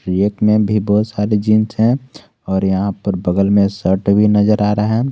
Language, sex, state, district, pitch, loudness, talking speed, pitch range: Hindi, male, Jharkhand, Garhwa, 105 Hz, -15 LUFS, 210 wpm, 100-110 Hz